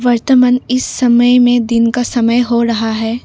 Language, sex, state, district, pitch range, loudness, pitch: Hindi, female, Assam, Kamrup Metropolitan, 230-250 Hz, -12 LUFS, 240 Hz